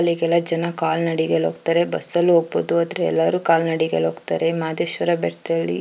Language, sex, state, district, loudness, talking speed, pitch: Kannada, female, Karnataka, Chamarajanagar, -19 LUFS, 125 wpm, 165 Hz